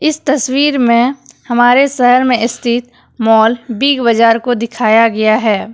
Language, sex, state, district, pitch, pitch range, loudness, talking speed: Hindi, female, Jharkhand, Deoghar, 240 Hz, 230-260 Hz, -12 LUFS, 145 wpm